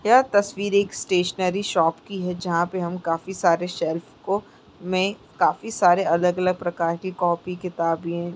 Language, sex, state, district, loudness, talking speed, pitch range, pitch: Hindi, female, Bihar, Muzaffarpur, -23 LUFS, 165 wpm, 170-195 Hz, 180 Hz